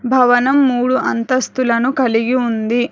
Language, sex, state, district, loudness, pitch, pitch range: Telugu, female, Telangana, Hyderabad, -15 LUFS, 250 Hz, 240-255 Hz